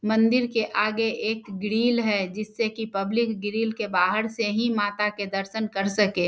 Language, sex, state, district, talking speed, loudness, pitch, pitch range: Hindi, female, Bihar, Darbhanga, 180 wpm, -25 LUFS, 215 Hz, 205-225 Hz